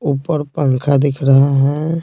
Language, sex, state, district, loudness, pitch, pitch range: Hindi, male, Bihar, Patna, -15 LUFS, 140 Hz, 135-150 Hz